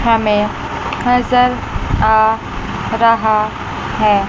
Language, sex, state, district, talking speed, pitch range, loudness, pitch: Hindi, female, Chandigarh, Chandigarh, 70 wpm, 215-235 Hz, -15 LUFS, 220 Hz